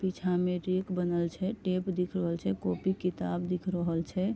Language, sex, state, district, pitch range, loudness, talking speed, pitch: Maithili, female, Bihar, Vaishali, 175-185 Hz, -32 LUFS, 195 wpm, 180 Hz